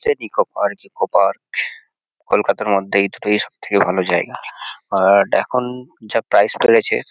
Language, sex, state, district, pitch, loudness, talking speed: Bengali, male, West Bengal, Kolkata, 125 Hz, -17 LUFS, 145 wpm